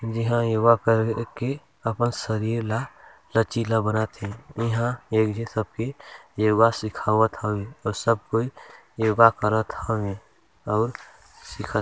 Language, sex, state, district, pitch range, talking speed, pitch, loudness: Hindi, male, Chhattisgarh, Balrampur, 110-115 Hz, 130 wpm, 115 Hz, -24 LUFS